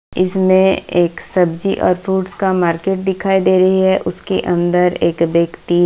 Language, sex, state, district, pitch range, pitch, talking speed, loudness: Hindi, female, Bihar, Kishanganj, 175-190 Hz, 185 Hz, 165 wpm, -15 LUFS